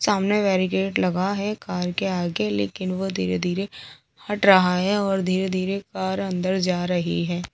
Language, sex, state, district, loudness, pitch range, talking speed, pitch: Hindi, female, Delhi, New Delhi, -23 LUFS, 180-195 Hz, 160 wpm, 185 Hz